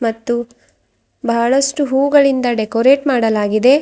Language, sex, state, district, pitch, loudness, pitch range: Kannada, female, Karnataka, Bidar, 245 Hz, -15 LUFS, 230-275 Hz